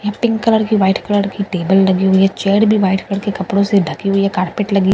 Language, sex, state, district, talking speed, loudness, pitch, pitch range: Hindi, female, Bihar, Katihar, 290 wpm, -15 LUFS, 195 Hz, 190-205 Hz